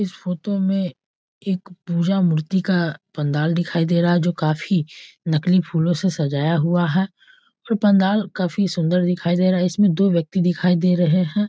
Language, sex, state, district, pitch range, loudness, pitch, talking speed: Hindi, male, Bihar, East Champaran, 170-195 Hz, -20 LUFS, 180 Hz, 175 wpm